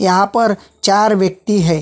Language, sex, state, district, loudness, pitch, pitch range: Hindi, male, Chhattisgarh, Sukma, -14 LUFS, 195 Hz, 185-210 Hz